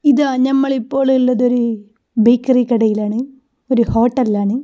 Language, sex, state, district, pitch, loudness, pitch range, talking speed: Malayalam, female, Kerala, Kozhikode, 250 Hz, -15 LUFS, 230-265 Hz, 105 wpm